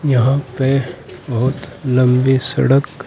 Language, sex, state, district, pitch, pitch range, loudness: Hindi, male, Uttar Pradesh, Saharanpur, 130 Hz, 125-135 Hz, -16 LUFS